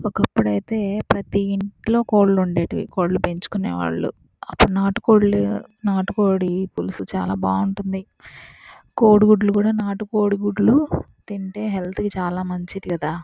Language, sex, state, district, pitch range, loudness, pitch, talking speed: Telugu, female, Andhra Pradesh, Chittoor, 180-210 Hz, -20 LUFS, 195 Hz, 125 wpm